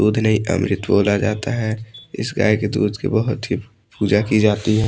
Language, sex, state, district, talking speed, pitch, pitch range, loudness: Hindi, male, Odisha, Malkangiri, 210 wpm, 110 Hz, 105-110 Hz, -19 LUFS